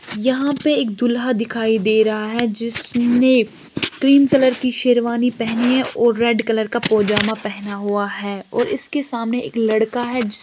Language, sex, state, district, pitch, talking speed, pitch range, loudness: Hindi, female, Chhattisgarh, Bilaspur, 235 Hz, 170 wpm, 220-250 Hz, -18 LUFS